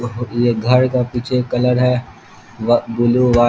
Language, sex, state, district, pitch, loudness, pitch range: Hindi, male, Bihar, East Champaran, 120 Hz, -17 LUFS, 120-125 Hz